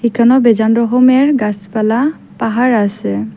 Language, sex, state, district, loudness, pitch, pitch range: Bengali, female, Assam, Hailakandi, -13 LUFS, 230 Hz, 215-250 Hz